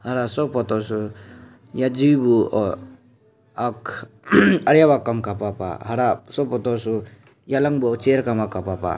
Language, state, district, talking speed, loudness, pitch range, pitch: Nyishi, Arunachal Pradesh, Papum Pare, 120 wpm, -20 LUFS, 110-130 Hz, 120 Hz